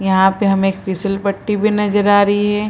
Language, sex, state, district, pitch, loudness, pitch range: Hindi, female, Bihar, Purnia, 200 Hz, -15 LUFS, 195-205 Hz